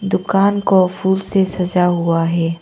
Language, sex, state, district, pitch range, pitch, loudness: Hindi, female, Arunachal Pradesh, Longding, 170-195 Hz, 185 Hz, -16 LUFS